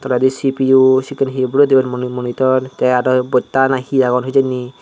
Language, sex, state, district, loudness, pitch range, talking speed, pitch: Chakma, male, Tripura, Dhalai, -15 LUFS, 125-135 Hz, 185 wpm, 130 Hz